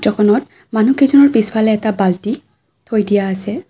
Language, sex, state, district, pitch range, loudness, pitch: Assamese, female, Assam, Kamrup Metropolitan, 210-230 Hz, -14 LUFS, 220 Hz